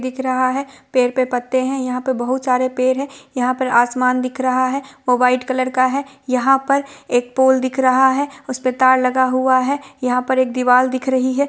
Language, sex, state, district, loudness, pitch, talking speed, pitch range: Hindi, female, Chhattisgarh, Bilaspur, -17 LUFS, 255 Hz, 230 wpm, 255-265 Hz